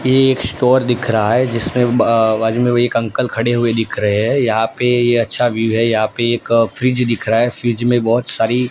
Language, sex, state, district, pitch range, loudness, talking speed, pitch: Hindi, male, Gujarat, Gandhinagar, 115-125 Hz, -15 LUFS, 235 wpm, 120 Hz